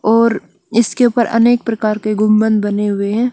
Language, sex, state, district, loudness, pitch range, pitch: Hindi, female, Chandigarh, Chandigarh, -14 LUFS, 210-235 Hz, 220 Hz